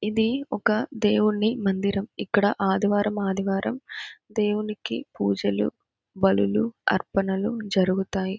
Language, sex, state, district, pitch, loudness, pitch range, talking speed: Telugu, female, Andhra Pradesh, Krishna, 205 Hz, -25 LUFS, 190-215 Hz, 85 wpm